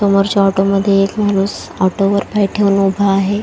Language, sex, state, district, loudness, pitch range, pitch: Marathi, female, Maharashtra, Chandrapur, -14 LUFS, 195-200 Hz, 195 Hz